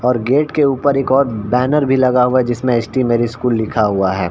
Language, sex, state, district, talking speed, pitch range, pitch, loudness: Hindi, male, Bihar, Samastipur, 265 wpm, 115-135 Hz, 125 Hz, -15 LUFS